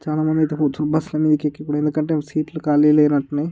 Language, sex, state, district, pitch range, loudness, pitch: Telugu, male, Andhra Pradesh, Guntur, 150-155 Hz, -19 LUFS, 150 Hz